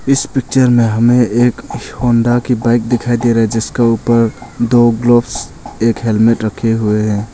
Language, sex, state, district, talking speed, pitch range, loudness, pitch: Hindi, male, Arunachal Pradesh, Longding, 165 wpm, 115-120 Hz, -13 LUFS, 120 Hz